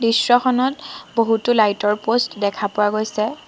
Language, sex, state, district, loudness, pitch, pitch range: Assamese, female, Assam, Sonitpur, -19 LUFS, 225 Hz, 210-245 Hz